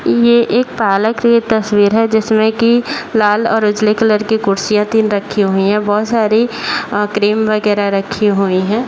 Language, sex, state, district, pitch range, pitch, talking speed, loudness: Hindi, male, Bihar, Jahanabad, 205-225 Hz, 215 Hz, 185 wpm, -13 LUFS